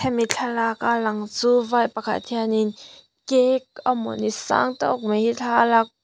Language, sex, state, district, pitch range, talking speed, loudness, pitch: Mizo, female, Mizoram, Aizawl, 215-245 Hz, 160 wpm, -22 LUFS, 230 Hz